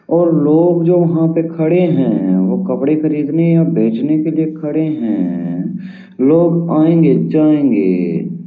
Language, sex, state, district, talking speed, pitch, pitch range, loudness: Hindi, male, Uttar Pradesh, Varanasi, 135 wpm, 160 Hz, 150-170 Hz, -14 LUFS